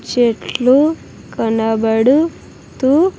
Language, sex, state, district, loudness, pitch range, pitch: Telugu, female, Andhra Pradesh, Sri Satya Sai, -15 LUFS, 225-295 Hz, 250 Hz